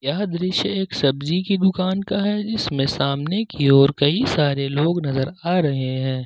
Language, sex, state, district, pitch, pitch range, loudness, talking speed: Hindi, male, Jharkhand, Ranchi, 160 Hz, 140-190 Hz, -20 LUFS, 180 wpm